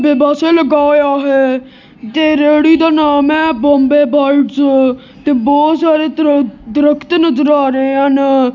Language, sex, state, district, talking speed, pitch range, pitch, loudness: Punjabi, female, Punjab, Kapurthala, 135 wpm, 270-300 Hz, 290 Hz, -11 LUFS